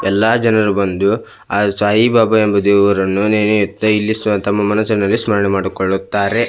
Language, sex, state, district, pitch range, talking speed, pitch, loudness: Kannada, male, Karnataka, Belgaum, 100-110 Hz, 140 wpm, 105 Hz, -14 LUFS